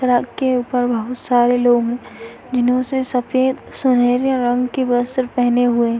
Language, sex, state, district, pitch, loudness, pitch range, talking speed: Hindi, female, Uttar Pradesh, Hamirpur, 245 Hz, -17 LUFS, 245-255 Hz, 160 wpm